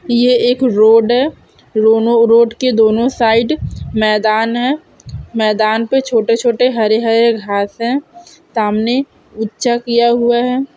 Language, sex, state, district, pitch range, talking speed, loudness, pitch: Hindi, female, Andhra Pradesh, Krishna, 220-250 Hz, 130 wpm, -13 LUFS, 235 Hz